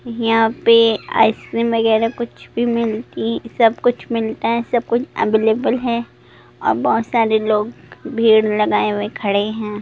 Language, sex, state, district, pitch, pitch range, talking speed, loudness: Hindi, female, Jharkhand, Jamtara, 225 Hz, 220-235 Hz, 155 wpm, -17 LUFS